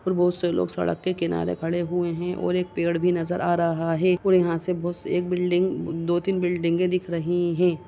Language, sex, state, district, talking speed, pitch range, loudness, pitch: Hindi, female, Uttar Pradesh, Budaun, 230 wpm, 170-180 Hz, -24 LUFS, 175 Hz